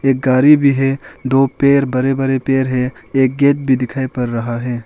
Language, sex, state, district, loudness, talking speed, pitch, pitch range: Hindi, male, Arunachal Pradesh, Longding, -15 LUFS, 220 wpm, 135 Hz, 125-135 Hz